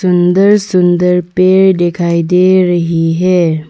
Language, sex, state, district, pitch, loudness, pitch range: Hindi, female, Arunachal Pradesh, Longding, 180 Hz, -10 LUFS, 170-185 Hz